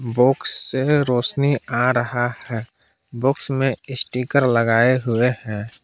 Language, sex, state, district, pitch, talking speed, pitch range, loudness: Hindi, male, Jharkhand, Palamu, 125 Hz, 125 wpm, 120-135 Hz, -18 LUFS